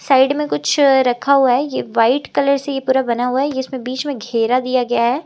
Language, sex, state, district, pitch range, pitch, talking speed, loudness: Hindi, female, Uttar Pradesh, Lucknow, 245-275 Hz, 260 Hz, 260 wpm, -16 LUFS